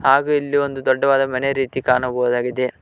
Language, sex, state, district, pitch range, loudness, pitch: Kannada, male, Karnataka, Koppal, 125-140 Hz, -19 LUFS, 135 Hz